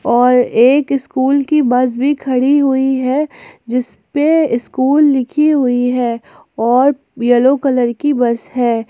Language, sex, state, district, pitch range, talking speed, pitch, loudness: Hindi, female, Jharkhand, Ranchi, 245-280 Hz, 140 wpm, 260 Hz, -14 LUFS